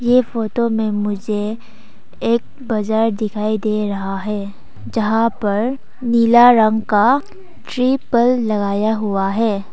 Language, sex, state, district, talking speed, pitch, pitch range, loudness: Hindi, female, Arunachal Pradesh, Papum Pare, 115 wpm, 220 Hz, 210-235 Hz, -17 LUFS